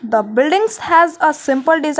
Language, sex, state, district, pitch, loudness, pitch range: English, female, Jharkhand, Garhwa, 310 Hz, -14 LUFS, 265-340 Hz